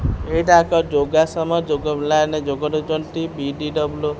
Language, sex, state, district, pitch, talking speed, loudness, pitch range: Odia, male, Odisha, Khordha, 155 Hz, 130 wpm, -19 LUFS, 150-165 Hz